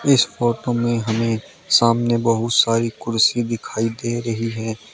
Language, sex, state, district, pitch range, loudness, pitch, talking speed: Hindi, male, Uttar Pradesh, Shamli, 115-120 Hz, -19 LUFS, 115 Hz, 135 wpm